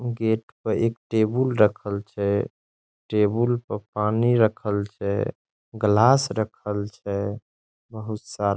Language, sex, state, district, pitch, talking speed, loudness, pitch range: Maithili, male, Bihar, Saharsa, 105 Hz, 140 wpm, -24 LUFS, 100-115 Hz